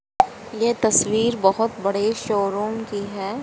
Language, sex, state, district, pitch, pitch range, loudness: Hindi, female, Haryana, Charkhi Dadri, 220 Hz, 200-230 Hz, -21 LUFS